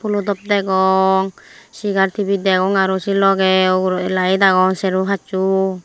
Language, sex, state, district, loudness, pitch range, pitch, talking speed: Chakma, female, Tripura, Unakoti, -16 LUFS, 190-195 Hz, 190 Hz, 145 wpm